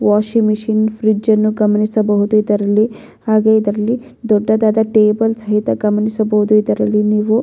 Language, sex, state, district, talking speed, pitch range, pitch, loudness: Kannada, female, Karnataka, Bellary, 115 wpm, 210-220 Hz, 215 Hz, -14 LUFS